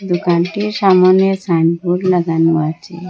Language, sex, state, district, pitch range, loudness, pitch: Bengali, female, Assam, Hailakandi, 170-190 Hz, -14 LUFS, 175 Hz